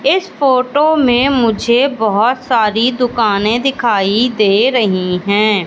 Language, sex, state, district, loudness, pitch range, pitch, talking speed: Hindi, female, Madhya Pradesh, Katni, -13 LUFS, 210-255 Hz, 235 Hz, 115 wpm